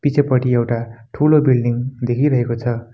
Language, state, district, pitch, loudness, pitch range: Nepali, West Bengal, Darjeeling, 125 Hz, -17 LUFS, 120-140 Hz